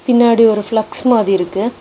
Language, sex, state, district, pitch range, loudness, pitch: Tamil, female, Tamil Nadu, Kanyakumari, 210-240 Hz, -13 LUFS, 225 Hz